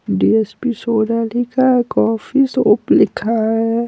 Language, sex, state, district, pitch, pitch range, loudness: Hindi, male, Bihar, Patna, 230 Hz, 225-245 Hz, -16 LUFS